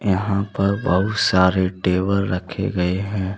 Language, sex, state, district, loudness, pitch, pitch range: Hindi, male, Jharkhand, Deoghar, -20 LUFS, 95 Hz, 90-100 Hz